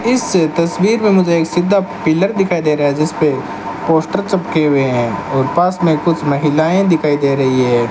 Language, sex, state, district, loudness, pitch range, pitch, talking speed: Hindi, male, Rajasthan, Bikaner, -14 LUFS, 140-180 Hz, 160 Hz, 190 wpm